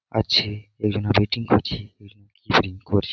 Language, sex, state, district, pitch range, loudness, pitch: Bengali, male, West Bengal, Malda, 100-110 Hz, -22 LUFS, 105 Hz